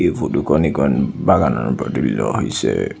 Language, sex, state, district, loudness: Assamese, male, Assam, Sonitpur, -18 LUFS